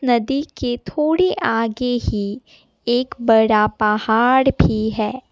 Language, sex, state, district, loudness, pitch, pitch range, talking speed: Hindi, female, Assam, Kamrup Metropolitan, -18 LUFS, 240 Hz, 220-260 Hz, 115 wpm